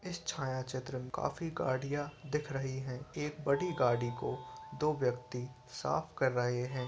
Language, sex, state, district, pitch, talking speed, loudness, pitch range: Hindi, male, Uttar Pradesh, Varanasi, 130 Hz, 155 wpm, -36 LUFS, 125-150 Hz